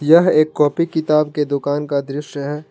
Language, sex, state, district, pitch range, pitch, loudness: Hindi, male, Jharkhand, Ranchi, 145-155 Hz, 150 Hz, -17 LUFS